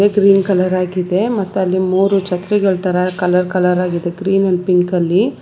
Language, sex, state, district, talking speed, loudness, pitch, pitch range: Kannada, female, Karnataka, Bangalore, 155 wpm, -15 LUFS, 185 Hz, 180-195 Hz